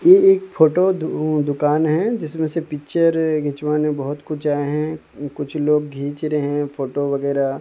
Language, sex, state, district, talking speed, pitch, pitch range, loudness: Hindi, male, Odisha, Sambalpur, 165 wpm, 150 Hz, 145-160 Hz, -19 LUFS